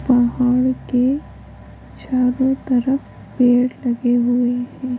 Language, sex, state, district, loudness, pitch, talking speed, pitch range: Hindi, female, Uttar Pradesh, Hamirpur, -18 LUFS, 250 Hz, 95 wpm, 245-255 Hz